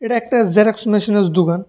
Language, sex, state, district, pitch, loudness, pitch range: Bengali, male, Tripura, West Tripura, 210 Hz, -15 LUFS, 195-230 Hz